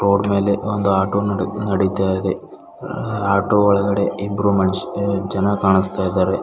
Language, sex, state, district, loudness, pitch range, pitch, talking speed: Kannada, male, Karnataka, Bidar, -19 LUFS, 95-100 Hz, 100 Hz, 130 wpm